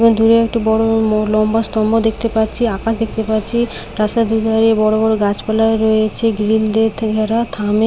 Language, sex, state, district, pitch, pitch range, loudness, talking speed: Bengali, female, West Bengal, Paschim Medinipur, 220 Hz, 215-225 Hz, -15 LUFS, 175 wpm